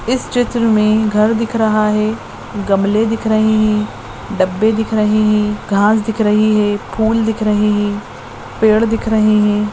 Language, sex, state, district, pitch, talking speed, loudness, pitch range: Hindi, female, Chhattisgarh, Sarguja, 215 Hz, 165 wpm, -14 LUFS, 210-220 Hz